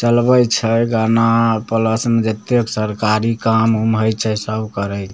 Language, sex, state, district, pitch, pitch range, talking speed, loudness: Maithili, male, Bihar, Samastipur, 110 Hz, 110-115 Hz, 165 wpm, -16 LUFS